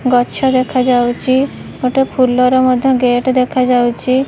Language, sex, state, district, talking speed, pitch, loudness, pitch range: Odia, female, Odisha, Malkangiri, 100 wpm, 255 Hz, -13 LUFS, 250-260 Hz